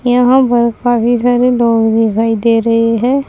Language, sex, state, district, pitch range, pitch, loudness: Hindi, female, Uttar Pradesh, Saharanpur, 230-245 Hz, 235 Hz, -11 LUFS